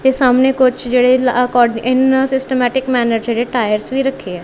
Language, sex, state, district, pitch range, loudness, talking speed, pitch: Punjabi, female, Punjab, Kapurthala, 240-265 Hz, -14 LUFS, 175 wpm, 250 Hz